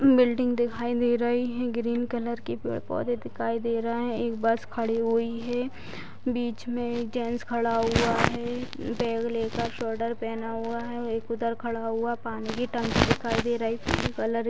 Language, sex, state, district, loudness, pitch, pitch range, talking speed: Hindi, female, Bihar, Purnia, -28 LUFS, 235 Hz, 230-240 Hz, 180 wpm